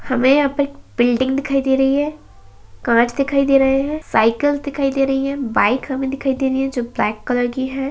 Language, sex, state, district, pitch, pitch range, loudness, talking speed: Kumaoni, male, Uttarakhand, Uttarkashi, 270 Hz, 245-275 Hz, -18 LUFS, 225 wpm